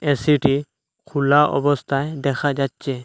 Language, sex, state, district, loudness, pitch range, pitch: Bengali, male, Assam, Hailakandi, -20 LUFS, 140-150 Hz, 145 Hz